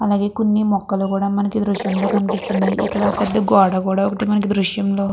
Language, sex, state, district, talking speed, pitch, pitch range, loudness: Telugu, female, Andhra Pradesh, Krishna, 185 wpm, 200 Hz, 195-210 Hz, -18 LUFS